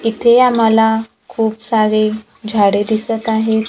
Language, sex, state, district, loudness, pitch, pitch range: Marathi, female, Maharashtra, Gondia, -14 LUFS, 220 Hz, 215-225 Hz